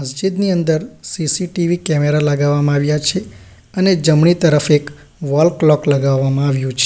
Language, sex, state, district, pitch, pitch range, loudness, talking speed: Gujarati, male, Gujarat, Valsad, 150 Hz, 140-170 Hz, -15 LUFS, 140 wpm